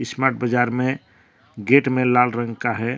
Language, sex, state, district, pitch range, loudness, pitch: Hindi, male, Jharkhand, Deoghar, 120-130 Hz, -20 LUFS, 125 Hz